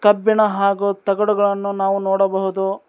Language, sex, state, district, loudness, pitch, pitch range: Kannada, male, Karnataka, Bangalore, -18 LUFS, 200 Hz, 195-205 Hz